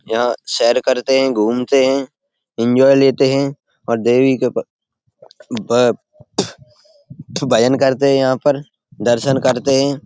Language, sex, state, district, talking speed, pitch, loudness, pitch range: Hindi, male, Uttar Pradesh, Etah, 130 wpm, 135 Hz, -15 LUFS, 125-140 Hz